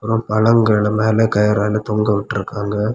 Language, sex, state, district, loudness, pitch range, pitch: Tamil, male, Tamil Nadu, Kanyakumari, -16 LUFS, 105-110 Hz, 105 Hz